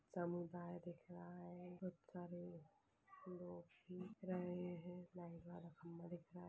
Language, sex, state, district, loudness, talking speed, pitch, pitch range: Hindi, female, Chhattisgarh, Balrampur, -53 LUFS, 100 wpm, 175 Hz, 175-180 Hz